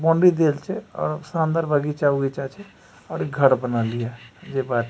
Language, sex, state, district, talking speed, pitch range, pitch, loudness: Maithili, male, Bihar, Supaul, 170 wpm, 130-165 Hz, 145 Hz, -22 LUFS